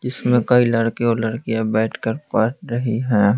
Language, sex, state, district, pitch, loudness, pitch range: Hindi, male, Bihar, Patna, 115 Hz, -19 LUFS, 110-120 Hz